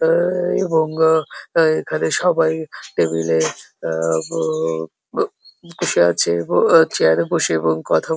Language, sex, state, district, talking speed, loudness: Bengali, male, West Bengal, Jhargram, 145 wpm, -18 LUFS